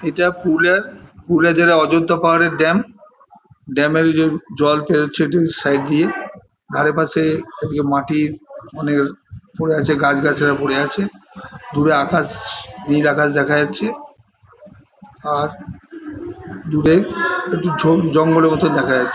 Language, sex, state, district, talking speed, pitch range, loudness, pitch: Bengali, male, West Bengal, Purulia, 120 wpm, 150-175 Hz, -16 LUFS, 160 Hz